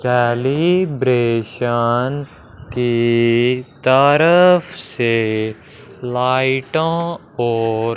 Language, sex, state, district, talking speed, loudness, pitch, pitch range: Hindi, male, Punjab, Fazilka, 45 wpm, -16 LUFS, 125 Hz, 115-140 Hz